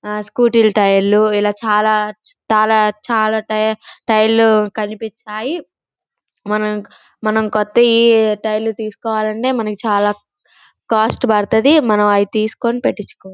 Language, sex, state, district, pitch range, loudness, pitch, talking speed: Telugu, female, Andhra Pradesh, Guntur, 210-225 Hz, -15 LUFS, 215 Hz, 105 wpm